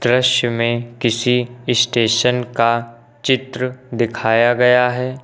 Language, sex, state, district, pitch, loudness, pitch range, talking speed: Hindi, male, Uttar Pradesh, Lucknow, 120 Hz, -17 LUFS, 120-125 Hz, 105 wpm